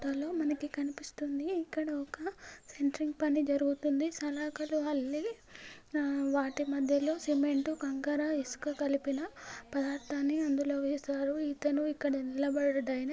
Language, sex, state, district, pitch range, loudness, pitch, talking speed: Telugu, female, Telangana, Nalgonda, 280-300 Hz, -34 LUFS, 290 Hz, 100 wpm